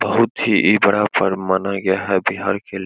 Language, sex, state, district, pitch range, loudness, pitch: Hindi, male, Bihar, Begusarai, 95-100 Hz, -17 LUFS, 100 Hz